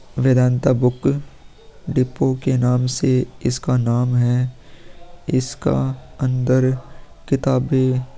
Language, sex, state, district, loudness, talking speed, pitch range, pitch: Hindi, male, Bihar, Vaishali, -19 LUFS, 105 wpm, 125-135 Hz, 130 Hz